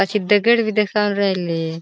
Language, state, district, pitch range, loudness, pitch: Bhili, Maharashtra, Dhule, 185-210 Hz, -18 LUFS, 205 Hz